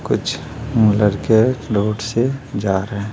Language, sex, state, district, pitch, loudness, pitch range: Hindi, male, Bihar, Patna, 110 Hz, -18 LUFS, 100-120 Hz